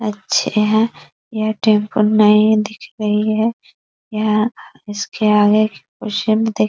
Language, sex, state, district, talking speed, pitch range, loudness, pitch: Hindi, female, Bihar, East Champaran, 135 wpm, 210-220 Hz, -16 LUFS, 215 Hz